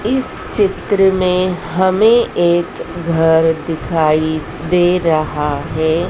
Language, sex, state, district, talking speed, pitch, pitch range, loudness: Hindi, female, Madhya Pradesh, Dhar, 100 wpm, 170 Hz, 160-185 Hz, -15 LUFS